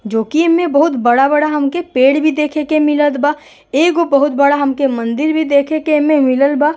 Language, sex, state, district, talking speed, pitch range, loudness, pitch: Bhojpuri, female, Uttar Pradesh, Gorakhpur, 205 wpm, 280-310 Hz, -13 LUFS, 295 Hz